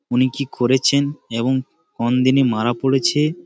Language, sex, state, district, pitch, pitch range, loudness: Bengali, male, West Bengal, Malda, 130 Hz, 125-140 Hz, -18 LUFS